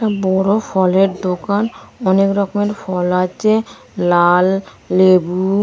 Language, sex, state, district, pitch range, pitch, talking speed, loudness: Bengali, female, West Bengal, Dakshin Dinajpur, 185-205 Hz, 190 Hz, 105 wpm, -16 LUFS